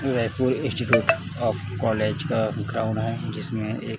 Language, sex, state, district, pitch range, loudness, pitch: Hindi, male, Chhattisgarh, Raipur, 110-125 Hz, -25 LUFS, 115 Hz